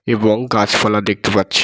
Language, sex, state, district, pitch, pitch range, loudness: Bengali, male, West Bengal, Dakshin Dinajpur, 105 Hz, 105-110 Hz, -15 LUFS